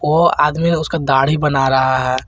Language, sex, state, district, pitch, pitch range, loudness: Hindi, male, Jharkhand, Garhwa, 150 Hz, 135-160 Hz, -15 LUFS